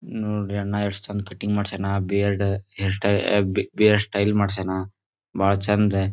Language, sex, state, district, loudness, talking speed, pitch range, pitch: Kannada, male, Karnataka, Dharwad, -23 LUFS, 145 wpm, 100-105 Hz, 100 Hz